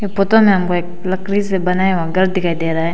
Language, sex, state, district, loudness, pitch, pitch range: Hindi, female, Arunachal Pradesh, Papum Pare, -16 LUFS, 185 Hz, 175-195 Hz